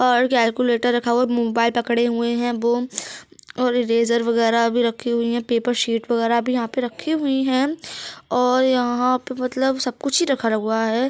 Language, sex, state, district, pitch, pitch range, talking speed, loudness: Hindi, female, Bihar, Darbhanga, 240 Hz, 235-255 Hz, 190 wpm, -20 LUFS